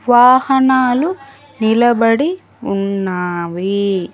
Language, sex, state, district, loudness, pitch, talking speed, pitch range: Telugu, female, Andhra Pradesh, Annamaya, -14 LUFS, 235 Hz, 45 wpm, 195-265 Hz